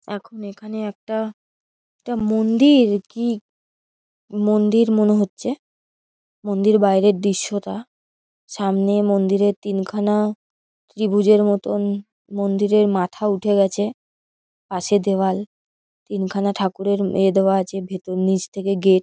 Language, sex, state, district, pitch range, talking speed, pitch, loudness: Bengali, female, West Bengal, Paschim Medinipur, 195-215 Hz, 105 wpm, 205 Hz, -19 LUFS